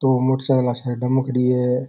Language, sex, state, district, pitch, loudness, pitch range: Rajasthani, male, Rajasthan, Churu, 125 Hz, -20 LUFS, 125-130 Hz